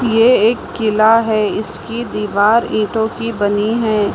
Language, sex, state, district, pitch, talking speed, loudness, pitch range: Hindi, female, Maharashtra, Mumbai Suburban, 220 Hz, 145 wpm, -15 LUFS, 210-230 Hz